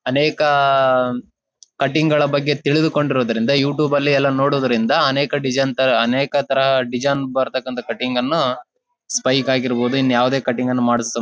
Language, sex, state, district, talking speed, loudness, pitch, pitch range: Kannada, male, Karnataka, Bellary, 130 wpm, -18 LUFS, 135 Hz, 125-145 Hz